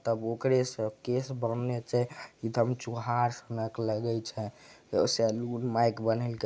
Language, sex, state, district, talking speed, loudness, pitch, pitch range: Maithili, male, Bihar, Begusarai, 120 wpm, -31 LUFS, 115 Hz, 115-120 Hz